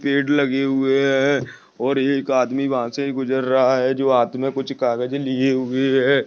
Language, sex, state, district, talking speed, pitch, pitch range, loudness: Hindi, male, Uttar Pradesh, Jyotiba Phule Nagar, 190 wpm, 135 Hz, 130-135 Hz, -20 LUFS